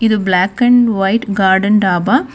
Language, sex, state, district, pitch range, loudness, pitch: Kannada, female, Karnataka, Bangalore, 190-230 Hz, -12 LUFS, 205 Hz